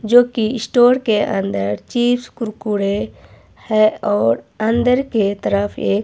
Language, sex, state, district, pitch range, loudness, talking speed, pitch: Hindi, female, Himachal Pradesh, Shimla, 195-240 Hz, -17 LUFS, 130 wpm, 215 Hz